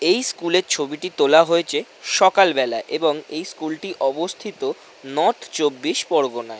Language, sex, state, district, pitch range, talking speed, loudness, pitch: Bengali, male, West Bengal, North 24 Parganas, 155-240 Hz, 135 wpm, -20 LUFS, 170 Hz